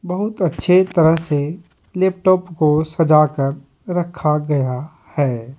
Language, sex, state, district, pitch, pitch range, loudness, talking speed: Hindi, male, Bihar, Patna, 160 Hz, 145-180 Hz, -17 LUFS, 120 wpm